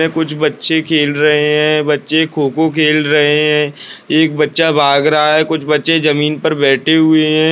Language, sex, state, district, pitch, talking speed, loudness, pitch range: Hindi, male, Bihar, Purnia, 155 Hz, 185 wpm, -12 LUFS, 150-160 Hz